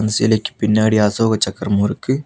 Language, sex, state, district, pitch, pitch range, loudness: Tamil, male, Tamil Nadu, Nilgiris, 110 Hz, 105-110 Hz, -17 LUFS